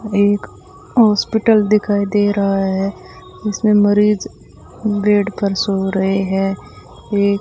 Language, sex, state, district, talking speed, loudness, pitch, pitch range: Hindi, female, Rajasthan, Bikaner, 120 wpm, -16 LUFS, 205 Hz, 195-210 Hz